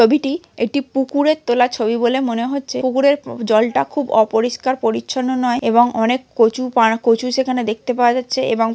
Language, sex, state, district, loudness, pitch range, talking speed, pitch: Bengali, female, West Bengal, Malda, -17 LUFS, 230-265 Hz, 170 wpm, 245 Hz